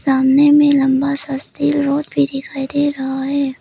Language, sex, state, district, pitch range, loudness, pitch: Hindi, female, Arunachal Pradesh, Papum Pare, 270-290 Hz, -16 LUFS, 280 Hz